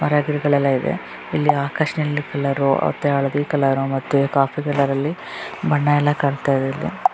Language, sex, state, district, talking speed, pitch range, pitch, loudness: Kannada, female, Karnataka, Raichur, 145 wpm, 135-145 Hz, 140 Hz, -20 LUFS